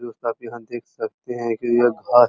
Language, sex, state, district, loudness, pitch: Hindi, male, Uttar Pradesh, Muzaffarnagar, -23 LUFS, 120 Hz